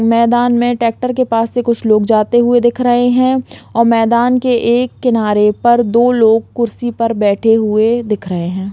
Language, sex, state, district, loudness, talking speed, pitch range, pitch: Hindi, female, Bihar, East Champaran, -13 LUFS, 190 wpm, 220-245 Hz, 235 Hz